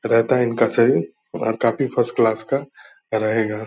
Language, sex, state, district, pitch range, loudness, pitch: Hindi, male, Bihar, Purnia, 110-125 Hz, -20 LUFS, 115 Hz